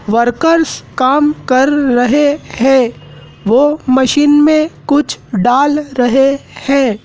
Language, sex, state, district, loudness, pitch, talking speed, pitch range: Hindi, male, Madhya Pradesh, Dhar, -12 LUFS, 270 Hz, 100 wpm, 245-290 Hz